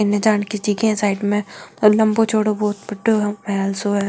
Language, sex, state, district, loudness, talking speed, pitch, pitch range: Marwari, female, Rajasthan, Nagaur, -19 LUFS, 175 wpm, 210 Hz, 205-215 Hz